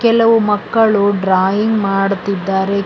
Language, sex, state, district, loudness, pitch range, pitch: Kannada, female, Karnataka, Bangalore, -14 LUFS, 195-220 Hz, 200 Hz